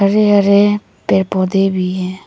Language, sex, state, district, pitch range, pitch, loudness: Hindi, female, Arunachal Pradesh, Lower Dibang Valley, 185-205 Hz, 195 Hz, -14 LUFS